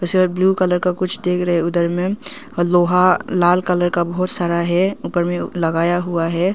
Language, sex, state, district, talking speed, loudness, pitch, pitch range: Hindi, female, Arunachal Pradesh, Longding, 210 wpm, -17 LUFS, 180 Hz, 175-185 Hz